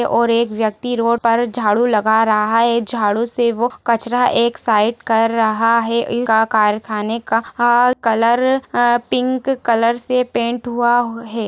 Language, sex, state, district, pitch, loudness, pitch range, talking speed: Hindi, female, Uttar Pradesh, Ghazipur, 235 Hz, -16 LUFS, 225-240 Hz, 145 wpm